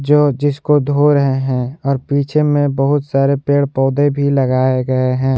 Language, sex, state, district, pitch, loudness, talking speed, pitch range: Hindi, male, Jharkhand, Ranchi, 140 Hz, -15 LUFS, 180 wpm, 135-145 Hz